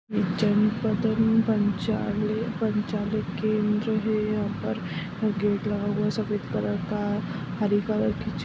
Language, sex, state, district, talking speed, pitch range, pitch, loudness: Kumaoni, male, Uttarakhand, Uttarkashi, 115 wpm, 205-215 Hz, 210 Hz, -26 LUFS